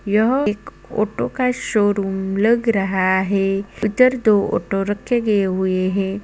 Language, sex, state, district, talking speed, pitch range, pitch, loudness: Hindi, male, Uttar Pradesh, Muzaffarnagar, 155 wpm, 195-225 Hz, 205 Hz, -19 LUFS